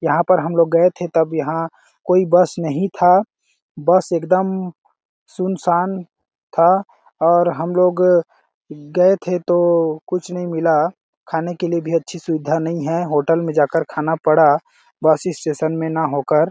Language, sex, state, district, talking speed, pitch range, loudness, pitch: Hindi, male, Chhattisgarh, Balrampur, 155 wpm, 160-180 Hz, -17 LUFS, 170 Hz